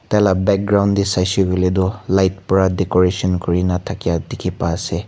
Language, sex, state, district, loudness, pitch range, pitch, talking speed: Nagamese, male, Nagaland, Kohima, -17 LUFS, 90-100 Hz, 95 Hz, 165 wpm